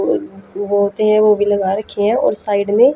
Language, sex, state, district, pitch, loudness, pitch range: Hindi, female, Haryana, Jhajjar, 205 Hz, -15 LUFS, 200-215 Hz